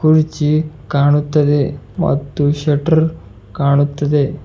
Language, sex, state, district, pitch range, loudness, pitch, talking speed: Kannada, male, Karnataka, Bidar, 140-155 Hz, -16 LUFS, 145 Hz, 65 wpm